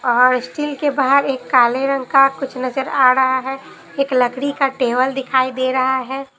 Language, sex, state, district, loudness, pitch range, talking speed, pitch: Hindi, female, Bihar, Katihar, -17 LUFS, 255-275 Hz, 195 wpm, 265 Hz